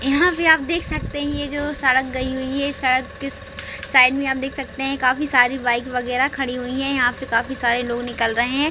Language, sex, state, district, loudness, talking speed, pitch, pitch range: Hindi, female, Chhattisgarh, Raigarh, -20 LUFS, 240 wpm, 265 Hz, 250-280 Hz